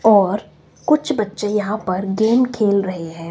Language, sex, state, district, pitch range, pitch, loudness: Hindi, female, Himachal Pradesh, Shimla, 195-220 Hz, 205 Hz, -18 LUFS